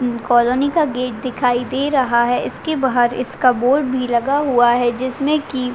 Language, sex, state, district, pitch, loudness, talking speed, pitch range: Hindi, female, Uttar Pradesh, Deoria, 250 Hz, -17 LUFS, 190 wpm, 245-275 Hz